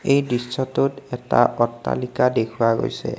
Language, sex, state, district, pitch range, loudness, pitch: Assamese, male, Assam, Kamrup Metropolitan, 120-135 Hz, -21 LUFS, 125 Hz